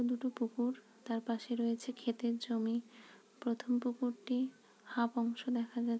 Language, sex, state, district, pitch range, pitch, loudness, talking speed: Bengali, female, West Bengal, Kolkata, 230-245 Hz, 235 Hz, -38 LUFS, 150 wpm